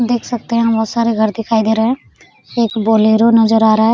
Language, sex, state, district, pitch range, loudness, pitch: Hindi, female, Jharkhand, Sahebganj, 220-230 Hz, -14 LUFS, 225 Hz